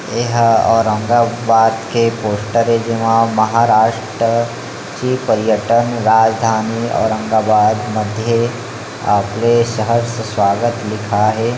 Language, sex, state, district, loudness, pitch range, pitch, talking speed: Chhattisgarhi, male, Chhattisgarh, Bilaspur, -15 LUFS, 110-115 Hz, 115 Hz, 90 wpm